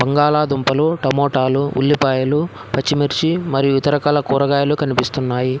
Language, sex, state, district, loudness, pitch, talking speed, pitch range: Telugu, male, Telangana, Hyderabad, -17 LUFS, 140 Hz, 105 wpm, 130-145 Hz